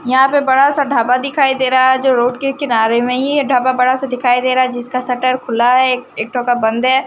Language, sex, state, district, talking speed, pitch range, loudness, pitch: Hindi, female, Haryana, Charkhi Dadri, 270 wpm, 245-265 Hz, -14 LUFS, 255 Hz